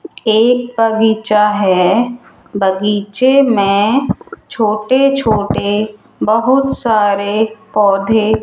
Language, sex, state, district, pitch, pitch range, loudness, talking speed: Hindi, female, Rajasthan, Jaipur, 220 Hz, 205-240 Hz, -13 LUFS, 80 wpm